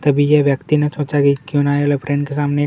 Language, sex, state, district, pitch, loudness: Hindi, male, Chhattisgarh, Kabirdham, 145 Hz, -16 LUFS